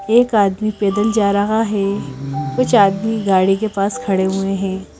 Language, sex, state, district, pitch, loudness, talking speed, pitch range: Hindi, female, Madhya Pradesh, Bhopal, 200 Hz, -17 LUFS, 170 wpm, 195-215 Hz